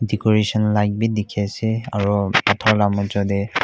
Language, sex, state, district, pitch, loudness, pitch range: Nagamese, male, Nagaland, Kohima, 105 Hz, -19 LUFS, 100-110 Hz